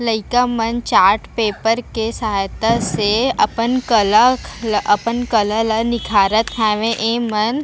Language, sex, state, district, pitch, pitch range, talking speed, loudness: Chhattisgarhi, female, Chhattisgarh, Raigarh, 225 Hz, 215-235 Hz, 140 wpm, -17 LUFS